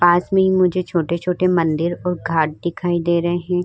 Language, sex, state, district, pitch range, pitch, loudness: Hindi, female, Uttar Pradesh, Varanasi, 170-180 Hz, 175 Hz, -19 LUFS